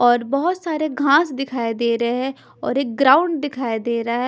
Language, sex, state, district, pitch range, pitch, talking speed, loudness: Hindi, female, Punjab, Pathankot, 235-290 Hz, 265 Hz, 210 wpm, -20 LUFS